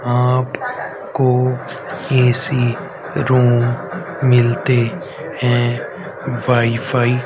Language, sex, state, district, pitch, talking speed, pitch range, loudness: Hindi, male, Haryana, Rohtak, 125 Hz, 75 wpm, 120-130 Hz, -17 LUFS